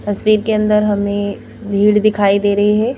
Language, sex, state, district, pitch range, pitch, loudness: Hindi, female, Madhya Pradesh, Bhopal, 205-215 Hz, 210 Hz, -15 LUFS